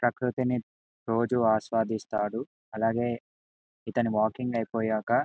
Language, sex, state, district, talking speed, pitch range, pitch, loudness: Telugu, male, Telangana, Karimnagar, 80 wpm, 105-120 Hz, 115 Hz, -29 LUFS